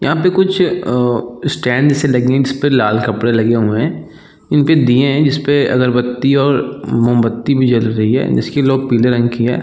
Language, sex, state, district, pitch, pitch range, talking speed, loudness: Hindi, male, Chhattisgarh, Raigarh, 130 Hz, 120-140 Hz, 185 wpm, -14 LUFS